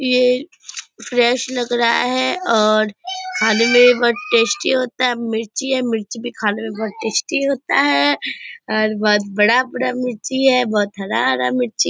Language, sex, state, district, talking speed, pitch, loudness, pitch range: Hindi, female, Bihar, Purnia, 160 wpm, 240 Hz, -17 LUFS, 215-255 Hz